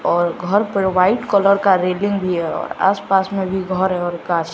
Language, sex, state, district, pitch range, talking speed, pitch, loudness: Hindi, male, Bihar, West Champaran, 175-200 Hz, 225 wpm, 190 Hz, -18 LUFS